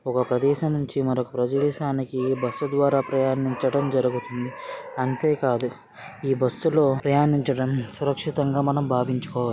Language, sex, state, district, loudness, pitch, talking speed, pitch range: Telugu, male, Andhra Pradesh, Srikakulam, -24 LUFS, 135 Hz, 100 wpm, 125-140 Hz